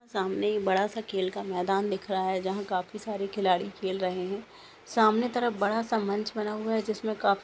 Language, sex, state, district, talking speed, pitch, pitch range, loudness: Hindi, female, Maharashtra, Sindhudurg, 215 wpm, 205 Hz, 190-220 Hz, -29 LUFS